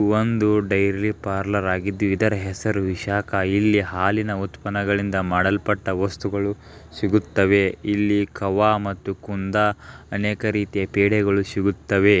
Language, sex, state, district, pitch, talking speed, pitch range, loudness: Kannada, male, Karnataka, Belgaum, 100 Hz, 105 wpm, 95-105 Hz, -22 LUFS